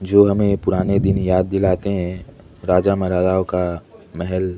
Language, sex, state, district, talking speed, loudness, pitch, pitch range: Hindi, male, Odisha, Khordha, 145 wpm, -18 LUFS, 95 Hz, 90-100 Hz